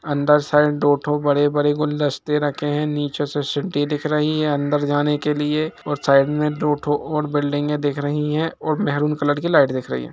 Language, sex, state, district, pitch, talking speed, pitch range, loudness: Hindi, male, Jharkhand, Jamtara, 145 Hz, 230 wpm, 145-150 Hz, -20 LUFS